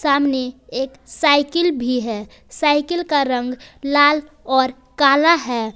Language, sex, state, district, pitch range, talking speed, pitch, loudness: Hindi, female, Jharkhand, Palamu, 255-295 Hz, 125 wpm, 280 Hz, -18 LUFS